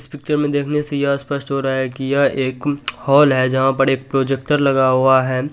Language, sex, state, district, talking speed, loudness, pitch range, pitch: Hindi, male, Bihar, Supaul, 230 wpm, -17 LUFS, 130-145 Hz, 135 Hz